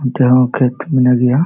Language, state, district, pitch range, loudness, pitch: Santali, Jharkhand, Sahebganj, 125-130 Hz, -13 LUFS, 125 Hz